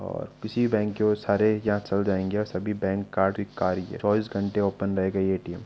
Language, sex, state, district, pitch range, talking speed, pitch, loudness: Hindi, male, Rajasthan, Nagaur, 95-105 Hz, 160 wpm, 100 Hz, -26 LUFS